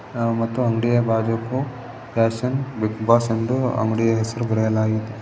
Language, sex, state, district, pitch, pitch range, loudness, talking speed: Kannada, male, Karnataka, Koppal, 115 Hz, 110-120 Hz, -21 LUFS, 115 wpm